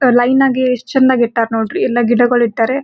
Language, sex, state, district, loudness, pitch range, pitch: Kannada, female, Karnataka, Gulbarga, -13 LUFS, 235-260 Hz, 245 Hz